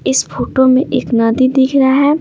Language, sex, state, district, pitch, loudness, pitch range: Hindi, female, Bihar, Patna, 260 Hz, -12 LUFS, 230-270 Hz